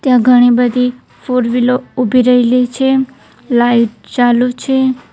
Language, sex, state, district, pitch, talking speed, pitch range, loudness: Gujarati, female, Gujarat, Valsad, 250 Hz, 105 wpm, 245-250 Hz, -12 LUFS